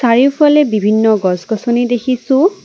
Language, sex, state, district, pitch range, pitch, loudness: Assamese, female, Assam, Kamrup Metropolitan, 220-270 Hz, 245 Hz, -13 LUFS